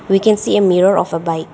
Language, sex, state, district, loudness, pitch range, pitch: English, female, Arunachal Pradesh, Lower Dibang Valley, -14 LUFS, 165-200 Hz, 190 Hz